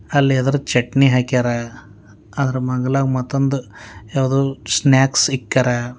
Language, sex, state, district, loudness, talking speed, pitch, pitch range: Kannada, male, Karnataka, Bidar, -18 LUFS, 100 wpm, 130 Hz, 120-135 Hz